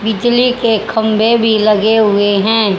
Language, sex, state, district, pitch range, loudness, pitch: Hindi, female, Haryana, Charkhi Dadri, 210-225 Hz, -12 LUFS, 220 Hz